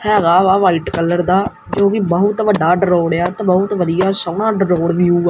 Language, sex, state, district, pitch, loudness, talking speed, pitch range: Punjabi, male, Punjab, Kapurthala, 185 Hz, -15 LUFS, 215 wpm, 175-200 Hz